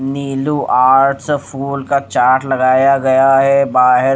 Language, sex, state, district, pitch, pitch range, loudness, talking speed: Hindi, male, Odisha, Nuapada, 135 Hz, 130-140 Hz, -13 LUFS, 130 wpm